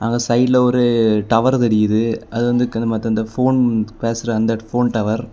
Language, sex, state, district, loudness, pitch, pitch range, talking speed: Tamil, male, Tamil Nadu, Kanyakumari, -17 LUFS, 115 Hz, 110-120 Hz, 145 wpm